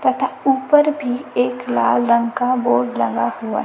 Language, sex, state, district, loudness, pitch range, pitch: Hindi, female, Chhattisgarh, Raipur, -18 LUFS, 240-265 Hz, 250 Hz